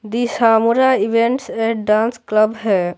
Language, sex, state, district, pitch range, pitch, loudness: Hindi, male, Bihar, Patna, 215-235 Hz, 225 Hz, -16 LUFS